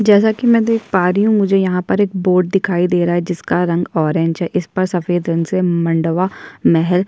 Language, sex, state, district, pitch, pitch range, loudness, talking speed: Hindi, female, Chhattisgarh, Kabirdham, 180 Hz, 175-195 Hz, -16 LUFS, 230 wpm